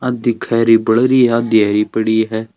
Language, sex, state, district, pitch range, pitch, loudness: Marwari, male, Rajasthan, Churu, 110-120 Hz, 115 Hz, -14 LUFS